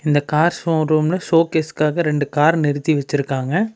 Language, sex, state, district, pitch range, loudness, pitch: Tamil, male, Tamil Nadu, Namakkal, 145-165 Hz, -18 LUFS, 155 Hz